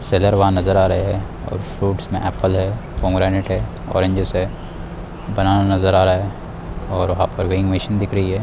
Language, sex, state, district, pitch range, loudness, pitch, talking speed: Hindi, male, Uttar Pradesh, Varanasi, 90-95 Hz, -19 LUFS, 95 Hz, 190 wpm